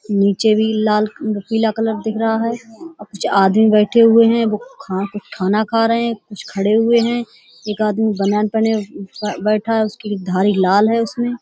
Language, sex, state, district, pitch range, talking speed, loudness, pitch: Hindi, female, Uttar Pradesh, Budaun, 205-225 Hz, 185 wpm, -16 LUFS, 215 Hz